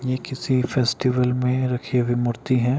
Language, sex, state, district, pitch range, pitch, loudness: Hindi, male, Bihar, Kishanganj, 125-130 Hz, 125 Hz, -22 LUFS